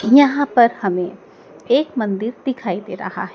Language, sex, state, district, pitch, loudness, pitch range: Hindi, female, Madhya Pradesh, Dhar, 225 Hz, -18 LUFS, 190-265 Hz